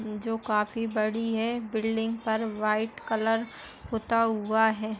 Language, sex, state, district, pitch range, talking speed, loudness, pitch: Hindi, female, Uttar Pradesh, Hamirpur, 215-225 Hz, 130 wpm, -28 LUFS, 225 Hz